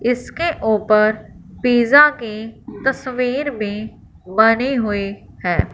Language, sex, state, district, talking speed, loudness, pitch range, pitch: Hindi, female, Punjab, Fazilka, 95 wpm, -17 LUFS, 215-260 Hz, 225 Hz